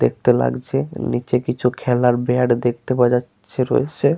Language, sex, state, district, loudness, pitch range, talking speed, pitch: Bengali, male, West Bengal, Paschim Medinipur, -19 LUFS, 100-125 Hz, 145 wpm, 125 Hz